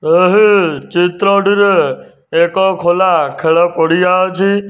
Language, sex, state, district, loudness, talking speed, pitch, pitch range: Odia, male, Odisha, Nuapada, -12 LUFS, 90 wpm, 185 Hz, 175-200 Hz